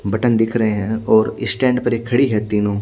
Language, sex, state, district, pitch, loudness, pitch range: Hindi, male, Odisha, Khordha, 110 Hz, -17 LUFS, 105-120 Hz